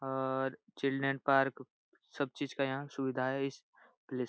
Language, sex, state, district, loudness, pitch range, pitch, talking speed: Hindi, male, Bihar, Supaul, -35 LUFS, 130-135 Hz, 135 Hz, 180 wpm